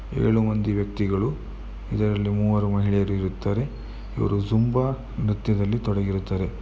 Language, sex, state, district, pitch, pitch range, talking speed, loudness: Kannada, male, Karnataka, Mysore, 105 Hz, 100-110 Hz, 110 wpm, -24 LUFS